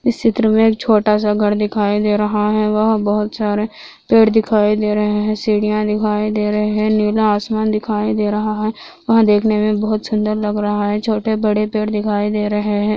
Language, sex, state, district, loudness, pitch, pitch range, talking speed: Hindi, female, Andhra Pradesh, Anantapur, -16 LUFS, 210 Hz, 210-215 Hz, 205 wpm